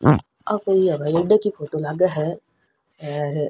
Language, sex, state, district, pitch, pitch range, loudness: Rajasthani, female, Rajasthan, Nagaur, 155 Hz, 150-190 Hz, -21 LUFS